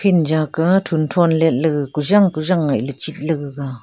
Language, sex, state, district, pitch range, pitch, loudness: Wancho, female, Arunachal Pradesh, Longding, 145-170 Hz, 160 Hz, -17 LUFS